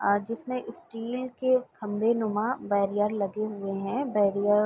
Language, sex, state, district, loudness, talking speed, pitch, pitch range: Hindi, female, Uttar Pradesh, Varanasi, -28 LUFS, 140 wpm, 215 Hz, 205-235 Hz